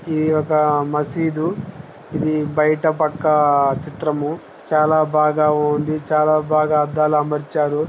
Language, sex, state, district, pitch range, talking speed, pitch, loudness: Telugu, male, Telangana, Nalgonda, 150-155 Hz, 105 wpm, 155 Hz, -18 LUFS